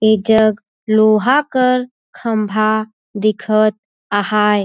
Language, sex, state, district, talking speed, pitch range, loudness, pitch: Surgujia, female, Chhattisgarh, Sarguja, 90 wpm, 215-220 Hz, -15 LUFS, 215 Hz